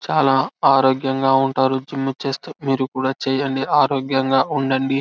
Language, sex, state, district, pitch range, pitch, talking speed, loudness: Telugu, male, Telangana, Karimnagar, 130-135 Hz, 135 Hz, 130 wpm, -19 LUFS